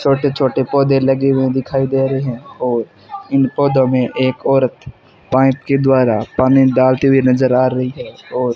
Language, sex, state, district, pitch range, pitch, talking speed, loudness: Hindi, male, Rajasthan, Bikaner, 130-135 Hz, 130 Hz, 190 wpm, -15 LUFS